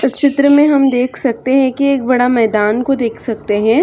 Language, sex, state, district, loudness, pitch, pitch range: Hindi, female, Chhattisgarh, Sarguja, -13 LUFS, 255 Hz, 230-275 Hz